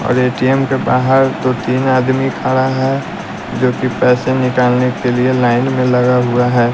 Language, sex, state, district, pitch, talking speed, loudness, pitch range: Hindi, male, Bihar, West Champaran, 125 Hz, 185 wpm, -14 LUFS, 125-130 Hz